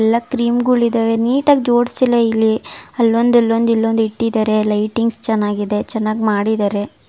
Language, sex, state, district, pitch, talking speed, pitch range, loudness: Kannada, female, Karnataka, Raichur, 225 Hz, 125 wpm, 215-235 Hz, -16 LUFS